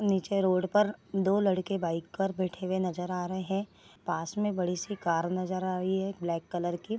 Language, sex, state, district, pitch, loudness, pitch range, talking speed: Hindi, female, Bihar, Gopalganj, 185 Hz, -31 LUFS, 180-195 Hz, 240 wpm